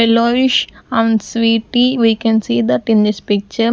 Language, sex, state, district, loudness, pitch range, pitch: English, female, Punjab, Kapurthala, -14 LUFS, 210-230 Hz, 225 Hz